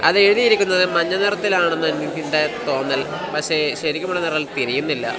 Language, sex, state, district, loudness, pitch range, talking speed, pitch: Malayalam, male, Kerala, Kasaragod, -19 LUFS, 155-190 Hz, 125 wpm, 170 Hz